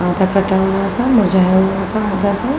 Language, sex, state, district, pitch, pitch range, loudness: Hindi, female, Uttar Pradesh, Hamirpur, 195 Hz, 190-210 Hz, -15 LUFS